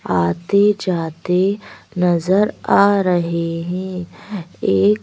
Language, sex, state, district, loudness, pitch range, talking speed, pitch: Hindi, female, Madhya Pradesh, Bhopal, -18 LUFS, 170-200 Hz, 85 wpm, 180 Hz